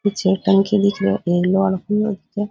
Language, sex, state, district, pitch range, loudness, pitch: Rajasthani, male, Rajasthan, Nagaur, 185-205 Hz, -18 LUFS, 195 Hz